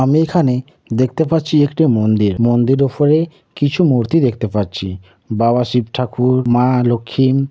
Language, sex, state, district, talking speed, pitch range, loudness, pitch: Bengali, male, West Bengal, Jhargram, 135 wpm, 115-145 Hz, -15 LUFS, 125 Hz